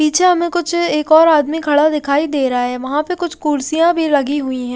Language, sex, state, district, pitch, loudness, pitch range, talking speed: Hindi, female, Haryana, Rohtak, 305 Hz, -15 LUFS, 285-335 Hz, 240 wpm